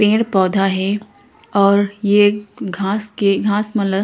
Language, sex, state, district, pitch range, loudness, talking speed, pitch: Chhattisgarhi, female, Chhattisgarh, Korba, 195-210 Hz, -17 LUFS, 150 wpm, 205 Hz